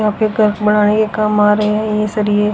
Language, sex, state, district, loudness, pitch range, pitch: Hindi, female, Haryana, Rohtak, -14 LUFS, 210-215 Hz, 210 Hz